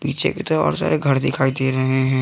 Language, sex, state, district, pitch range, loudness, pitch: Hindi, male, Jharkhand, Garhwa, 130-145 Hz, -19 LUFS, 135 Hz